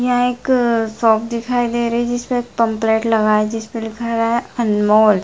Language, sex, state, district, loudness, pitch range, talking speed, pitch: Hindi, female, Bihar, Purnia, -17 LUFS, 220-240 Hz, 220 wpm, 230 Hz